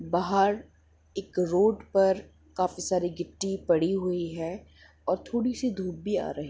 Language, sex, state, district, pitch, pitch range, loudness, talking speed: Hindi, female, Jharkhand, Sahebganj, 185 Hz, 175-195 Hz, -28 LUFS, 165 wpm